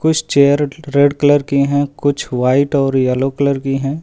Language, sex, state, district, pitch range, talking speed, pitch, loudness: Hindi, male, Uttar Pradesh, Lucknow, 135-145 Hz, 195 wpm, 140 Hz, -15 LUFS